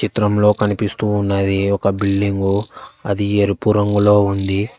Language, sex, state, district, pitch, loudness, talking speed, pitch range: Telugu, male, Telangana, Hyderabad, 100 Hz, -17 LUFS, 115 wpm, 100-105 Hz